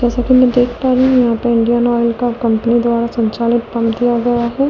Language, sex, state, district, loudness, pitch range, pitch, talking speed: Hindi, female, Delhi, New Delhi, -14 LUFS, 235-245 Hz, 240 Hz, 240 wpm